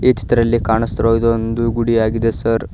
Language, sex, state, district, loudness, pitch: Kannada, male, Karnataka, Koppal, -16 LUFS, 115 Hz